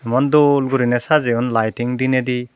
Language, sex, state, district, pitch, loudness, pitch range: Chakma, female, Tripura, Dhalai, 125 Hz, -17 LUFS, 120-135 Hz